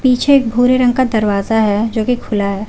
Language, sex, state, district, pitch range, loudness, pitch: Hindi, female, Jharkhand, Garhwa, 210-250 Hz, -14 LUFS, 230 Hz